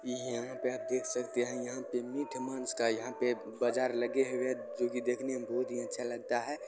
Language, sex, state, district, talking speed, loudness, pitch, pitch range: Hindi, male, Bihar, Saran, 225 wpm, -35 LUFS, 125 Hz, 125-130 Hz